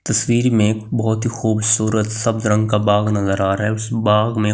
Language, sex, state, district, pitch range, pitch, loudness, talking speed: Hindi, male, Delhi, New Delhi, 105-110 Hz, 110 Hz, -17 LUFS, 225 wpm